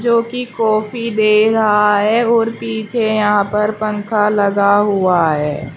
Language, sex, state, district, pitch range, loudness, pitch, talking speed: Hindi, female, Uttar Pradesh, Shamli, 205-225 Hz, -15 LUFS, 215 Hz, 145 wpm